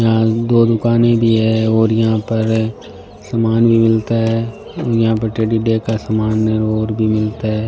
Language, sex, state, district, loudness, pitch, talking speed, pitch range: Hindi, male, Rajasthan, Bikaner, -15 LUFS, 110 Hz, 180 wpm, 110-115 Hz